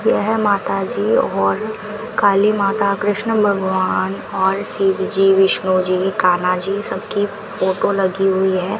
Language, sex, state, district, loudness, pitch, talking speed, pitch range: Hindi, female, Rajasthan, Bikaner, -17 LUFS, 195 Hz, 125 wpm, 190-205 Hz